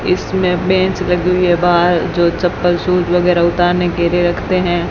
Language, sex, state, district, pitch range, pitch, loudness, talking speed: Hindi, female, Rajasthan, Bikaner, 175-180 Hz, 175 Hz, -14 LUFS, 185 wpm